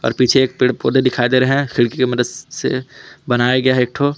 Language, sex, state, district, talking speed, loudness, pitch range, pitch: Hindi, male, Jharkhand, Palamu, 260 wpm, -16 LUFS, 125-130 Hz, 125 Hz